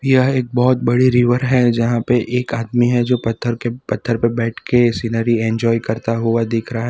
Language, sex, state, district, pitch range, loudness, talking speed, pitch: Hindi, male, Gujarat, Valsad, 115-125 Hz, -17 LUFS, 215 wpm, 120 Hz